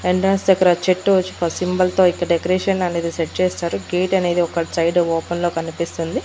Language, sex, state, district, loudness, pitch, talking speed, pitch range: Telugu, female, Andhra Pradesh, Annamaya, -19 LUFS, 175 Hz, 185 wpm, 170-185 Hz